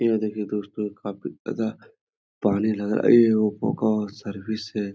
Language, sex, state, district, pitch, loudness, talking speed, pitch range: Hindi, male, Bihar, Darbhanga, 110 Hz, -24 LUFS, 110 wpm, 105-110 Hz